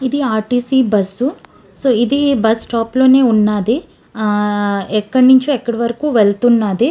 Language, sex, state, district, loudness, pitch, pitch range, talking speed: Telugu, female, Andhra Pradesh, Srikakulam, -14 LUFS, 235 Hz, 215-260 Hz, 130 wpm